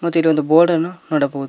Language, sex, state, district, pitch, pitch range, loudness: Kannada, male, Karnataka, Koppal, 165 Hz, 150-170 Hz, -16 LUFS